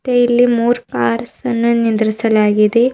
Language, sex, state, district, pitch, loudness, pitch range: Kannada, female, Karnataka, Bidar, 230 Hz, -14 LUFS, 215-240 Hz